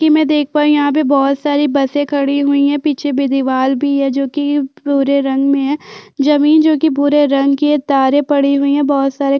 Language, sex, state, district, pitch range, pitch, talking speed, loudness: Hindi, female, Chhattisgarh, Jashpur, 275-290 Hz, 280 Hz, 235 wpm, -14 LUFS